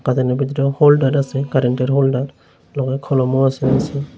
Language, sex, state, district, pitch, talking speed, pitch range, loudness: Bengali, male, Tripura, Unakoti, 135 Hz, 115 wpm, 130-140 Hz, -17 LUFS